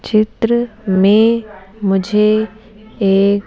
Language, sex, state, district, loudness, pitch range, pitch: Hindi, female, Madhya Pradesh, Bhopal, -14 LUFS, 195-220 Hz, 215 Hz